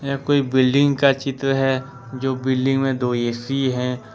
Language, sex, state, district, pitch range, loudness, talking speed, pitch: Hindi, male, Jharkhand, Ranchi, 130-135 Hz, -20 LUFS, 175 wpm, 135 Hz